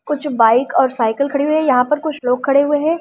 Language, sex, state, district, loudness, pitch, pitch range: Hindi, female, Delhi, New Delhi, -15 LUFS, 280 Hz, 250-300 Hz